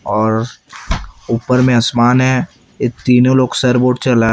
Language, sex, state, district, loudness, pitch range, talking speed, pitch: Hindi, male, Chhattisgarh, Raipur, -14 LUFS, 115-125 Hz, 125 wpm, 125 Hz